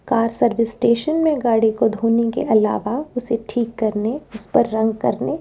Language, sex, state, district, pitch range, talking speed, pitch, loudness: Hindi, female, Rajasthan, Jaipur, 220-245 Hz, 175 wpm, 230 Hz, -19 LUFS